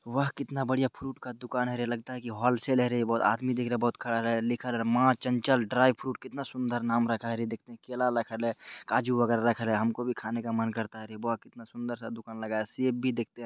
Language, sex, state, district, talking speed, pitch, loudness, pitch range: Maithili, male, Bihar, Purnia, 255 wpm, 120 Hz, -30 LUFS, 115-125 Hz